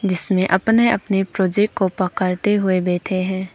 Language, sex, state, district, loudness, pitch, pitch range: Hindi, female, Arunachal Pradesh, Papum Pare, -19 LUFS, 190 Hz, 185-205 Hz